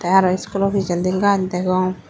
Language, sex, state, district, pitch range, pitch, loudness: Chakma, female, Tripura, Dhalai, 185-195 Hz, 185 Hz, -19 LUFS